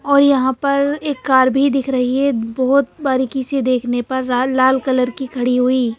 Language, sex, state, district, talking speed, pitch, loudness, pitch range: Hindi, female, Madhya Pradesh, Bhopal, 200 wpm, 260 Hz, -16 LUFS, 255-275 Hz